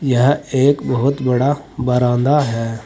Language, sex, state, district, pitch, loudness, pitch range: Hindi, male, Uttar Pradesh, Saharanpur, 130 Hz, -16 LUFS, 125-140 Hz